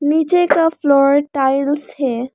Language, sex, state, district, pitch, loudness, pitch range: Hindi, female, Arunachal Pradesh, Lower Dibang Valley, 290 Hz, -15 LUFS, 275-310 Hz